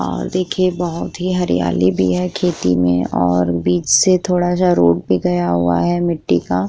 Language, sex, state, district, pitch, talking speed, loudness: Hindi, female, Chhattisgarh, Korba, 90 Hz, 180 wpm, -16 LUFS